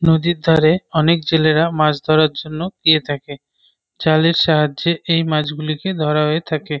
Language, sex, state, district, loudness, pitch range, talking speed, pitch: Bengali, male, West Bengal, North 24 Parganas, -16 LUFS, 150-165 Hz, 140 wpm, 155 Hz